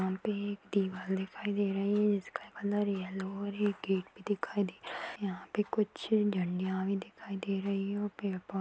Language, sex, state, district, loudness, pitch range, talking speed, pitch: Hindi, female, Uttar Pradesh, Deoria, -34 LUFS, 190-205 Hz, 235 wpm, 200 Hz